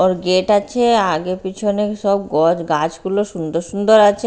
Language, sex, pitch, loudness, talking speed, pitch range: Bengali, female, 195 Hz, -17 LUFS, 155 wpm, 170-210 Hz